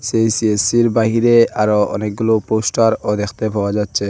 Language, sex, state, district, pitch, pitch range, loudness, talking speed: Bengali, male, Assam, Hailakandi, 110 Hz, 105-115 Hz, -16 LUFS, 130 wpm